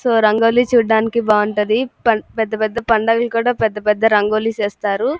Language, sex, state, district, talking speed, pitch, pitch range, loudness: Telugu, female, Andhra Pradesh, Guntur, 150 wpm, 225 Hz, 215-235 Hz, -16 LUFS